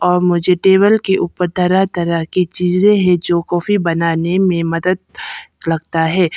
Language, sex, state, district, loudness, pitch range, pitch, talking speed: Hindi, female, Arunachal Pradesh, Papum Pare, -15 LUFS, 170-185 Hz, 180 Hz, 160 wpm